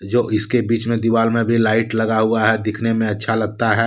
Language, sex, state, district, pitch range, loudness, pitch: Hindi, male, Jharkhand, Deoghar, 110-115 Hz, -18 LUFS, 115 Hz